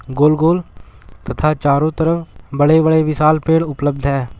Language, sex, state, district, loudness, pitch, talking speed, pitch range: Hindi, male, Bihar, Gaya, -15 LUFS, 150 Hz, 125 wpm, 135-160 Hz